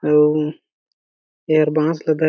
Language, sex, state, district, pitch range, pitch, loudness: Chhattisgarhi, male, Chhattisgarh, Jashpur, 150-155 Hz, 150 Hz, -18 LUFS